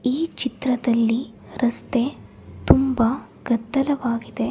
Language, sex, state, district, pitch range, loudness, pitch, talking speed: Kannada, female, Karnataka, Bangalore, 235-265 Hz, -22 LUFS, 250 Hz, 65 wpm